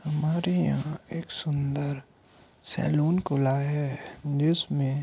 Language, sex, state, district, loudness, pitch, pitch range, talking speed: Hindi, male, Uttar Pradesh, Hamirpur, -28 LUFS, 150 Hz, 140-165 Hz, 105 wpm